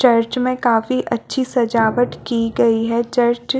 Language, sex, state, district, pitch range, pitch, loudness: Hindi, female, Chhattisgarh, Balrampur, 230-250 Hz, 240 Hz, -18 LUFS